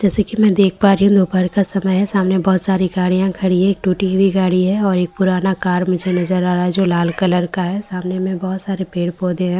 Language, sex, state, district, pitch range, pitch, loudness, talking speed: Hindi, female, Bihar, Katihar, 180-195 Hz, 185 Hz, -16 LUFS, 260 wpm